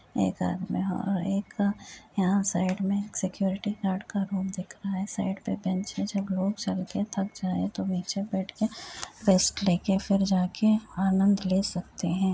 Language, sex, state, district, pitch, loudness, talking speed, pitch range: Hindi, female, Uttar Pradesh, Jyotiba Phule Nagar, 195 Hz, -28 LUFS, 200 wpm, 190-200 Hz